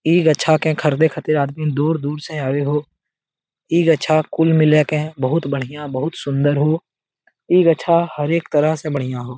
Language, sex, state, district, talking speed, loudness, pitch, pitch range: Hindi, male, Bihar, Jamui, 180 wpm, -18 LUFS, 155 Hz, 145-160 Hz